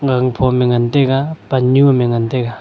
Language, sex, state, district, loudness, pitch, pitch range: Wancho, male, Arunachal Pradesh, Longding, -14 LUFS, 130 Hz, 120-135 Hz